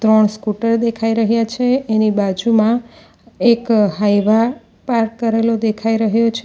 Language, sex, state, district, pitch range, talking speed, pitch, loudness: Gujarati, female, Gujarat, Valsad, 215-230 Hz, 130 wpm, 225 Hz, -16 LUFS